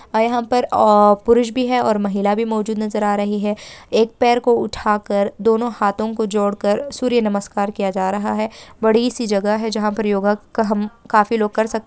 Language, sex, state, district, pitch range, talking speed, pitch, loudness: Hindi, female, West Bengal, Purulia, 205-230 Hz, 210 wpm, 215 Hz, -18 LUFS